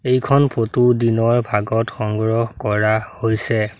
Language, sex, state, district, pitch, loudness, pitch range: Assamese, male, Assam, Sonitpur, 115 Hz, -18 LUFS, 110-120 Hz